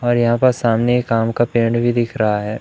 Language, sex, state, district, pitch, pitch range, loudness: Hindi, male, Madhya Pradesh, Umaria, 120 Hz, 115-120 Hz, -17 LUFS